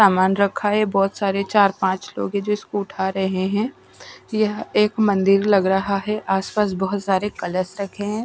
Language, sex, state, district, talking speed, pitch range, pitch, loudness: Hindi, female, Punjab, Pathankot, 190 wpm, 190-210 Hz, 200 Hz, -21 LUFS